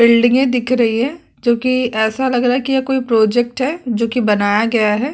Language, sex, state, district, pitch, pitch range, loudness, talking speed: Hindi, female, Uttarakhand, Tehri Garhwal, 240 Hz, 230-255 Hz, -15 LUFS, 220 wpm